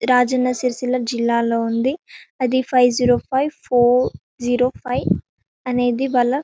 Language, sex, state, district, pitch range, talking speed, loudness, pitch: Telugu, female, Telangana, Karimnagar, 245-255 Hz, 110 wpm, -19 LUFS, 250 Hz